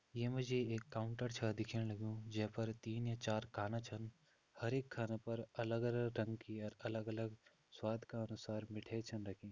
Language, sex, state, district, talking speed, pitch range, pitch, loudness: Hindi, male, Uttarakhand, Tehri Garhwal, 190 wpm, 110-115 Hz, 110 Hz, -44 LUFS